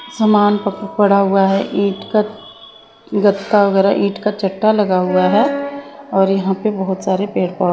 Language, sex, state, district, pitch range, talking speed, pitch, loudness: Hindi, female, Maharashtra, Mumbai Suburban, 195-215 Hz, 165 wpm, 200 Hz, -16 LUFS